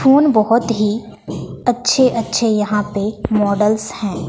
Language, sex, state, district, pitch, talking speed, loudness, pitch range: Hindi, female, Bihar, West Champaran, 215 Hz, 125 wpm, -16 LUFS, 210-240 Hz